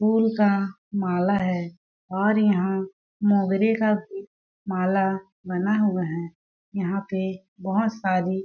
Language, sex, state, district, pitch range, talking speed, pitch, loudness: Hindi, female, Chhattisgarh, Balrampur, 185-205 Hz, 130 wpm, 195 Hz, -24 LUFS